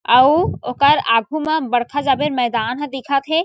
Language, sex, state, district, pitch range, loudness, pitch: Chhattisgarhi, female, Chhattisgarh, Jashpur, 245-295 Hz, -17 LUFS, 280 Hz